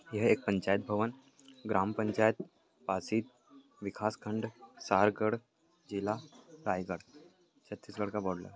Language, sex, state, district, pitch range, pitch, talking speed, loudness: Hindi, male, Chhattisgarh, Raigarh, 100-130 Hz, 110 Hz, 105 wpm, -34 LUFS